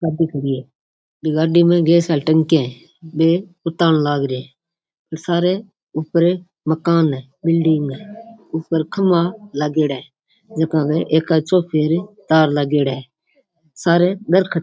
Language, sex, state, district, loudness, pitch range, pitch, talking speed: Rajasthani, female, Rajasthan, Nagaur, -18 LUFS, 155-175 Hz, 160 Hz, 140 wpm